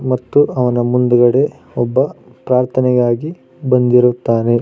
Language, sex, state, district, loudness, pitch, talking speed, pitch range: Kannada, male, Karnataka, Raichur, -14 LUFS, 125 Hz, 80 wpm, 120-130 Hz